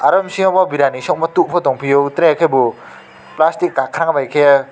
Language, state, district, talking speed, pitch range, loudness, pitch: Kokborok, Tripura, West Tripura, 180 wpm, 140-180 Hz, -15 LUFS, 165 Hz